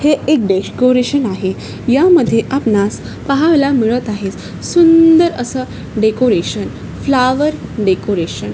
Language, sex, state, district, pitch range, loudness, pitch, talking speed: Marathi, female, Maharashtra, Chandrapur, 210-290 Hz, -14 LUFS, 255 Hz, 105 wpm